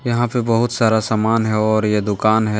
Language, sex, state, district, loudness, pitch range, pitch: Hindi, male, Jharkhand, Deoghar, -17 LUFS, 110-115 Hz, 110 Hz